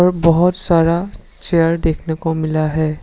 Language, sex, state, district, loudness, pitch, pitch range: Hindi, male, Assam, Sonitpur, -16 LUFS, 165 Hz, 160-175 Hz